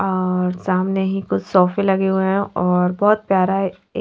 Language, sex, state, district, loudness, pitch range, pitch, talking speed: Hindi, female, Haryana, Charkhi Dadri, -18 LUFS, 180-195 Hz, 190 Hz, 180 wpm